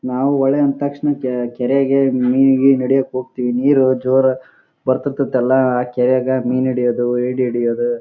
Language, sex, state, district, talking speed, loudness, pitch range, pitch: Kannada, male, Karnataka, Bellary, 155 wpm, -16 LUFS, 125-135 Hz, 130 Hz